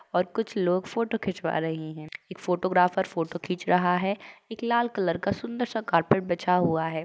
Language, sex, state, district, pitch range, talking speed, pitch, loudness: Hindi, female, Uttar Pradesh, Jalaun, 170-200 Hz, 195 wpm, 180 Hz, -27 LUFS